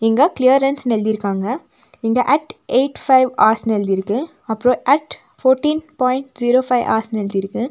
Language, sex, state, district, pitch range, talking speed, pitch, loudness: Tamil, female, Tamil Nadu, Nilgiris, 220-270 Hz, 130 wpm, 250 Hz, -17 LUFS